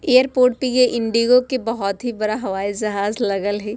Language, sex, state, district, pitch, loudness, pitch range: Bajjika, female, Bihar, Vaishali, 230 Hz, -19 LUFS, 205-250 Hz